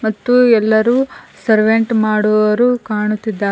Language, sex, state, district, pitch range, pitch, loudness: Kannada, female, Karnataka, Koppal, 215-235 Hz, 220 Hz, -14 LUFS